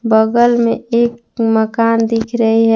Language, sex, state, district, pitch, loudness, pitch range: Hindi, female, Jharkhand, Palamu, 230 Hz, -14 LUFS, 225-235 Hz